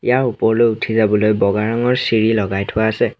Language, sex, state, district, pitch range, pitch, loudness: Assamese, male, Assam, Sonitpur, 105-115 Hz, 110 Hz, -16 LUFS